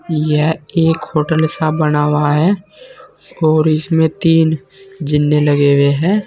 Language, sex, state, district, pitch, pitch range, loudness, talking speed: Hindi, male, Uttar Pradesh, Saharanpur, 155 Hz, 150-165 Hz, -14 LUFS, 135 wpm